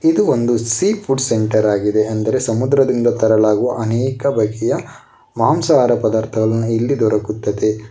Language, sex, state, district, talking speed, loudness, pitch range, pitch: Kannada, male, Karnataka, Bangalore, 115 wpm, -16 LUFS, 110-125 Hz, 115 Hz